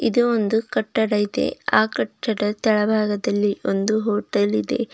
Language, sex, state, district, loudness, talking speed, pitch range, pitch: Kannada, female, Karnataka, Bidar, -21 LUFS, 120 wpm, 205-220 Hz, 210 Hz